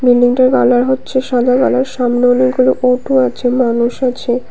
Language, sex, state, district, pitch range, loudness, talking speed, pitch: Bengali, female, Tripura, West Tripura, 245-255 Hz, -13 LUFS, 145 wpm, 250 Hz